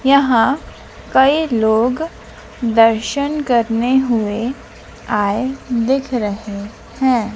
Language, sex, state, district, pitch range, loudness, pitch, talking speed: Hindi, female, Madhya Pradesh, Dhar, 220-265 Hz, -17 LUFS, 240 Hz, 80 wpm